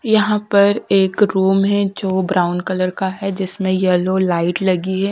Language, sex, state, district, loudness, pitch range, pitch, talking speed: Hindi, female, Punjab, Kapurthala, -17 LUFS, 185-200 Hz, 190 Hz, 175 wpm